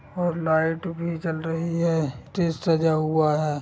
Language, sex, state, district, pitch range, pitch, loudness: Hindi, male, Bihar, Sitamarhi, 155-170 Hz, 165 Hz, -24 LUFS